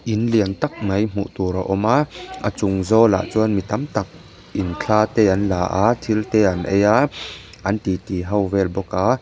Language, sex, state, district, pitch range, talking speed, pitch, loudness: Mizo, male, Mizoram, Aizawl, 95-110 Hz, 215 wpm, 100 Hz, -20 LUFS